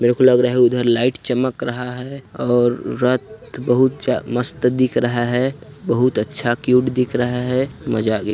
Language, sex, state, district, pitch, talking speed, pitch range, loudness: Hindi, male, Chhattisgarh, Sarguja, 125 Hz, 185 wpm, 120-130 Hz, -18 LUFS